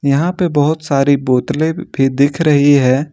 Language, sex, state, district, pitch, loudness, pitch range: Hindi, male, Jharkhand, Ranchi, 145 Hz, -14 LUFS, 135-155 Hz